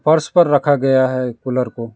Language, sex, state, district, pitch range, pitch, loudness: Hindi, male, West Bengal, Alipurduar, 125-145 Hz, 130 Hz, -16 LUFS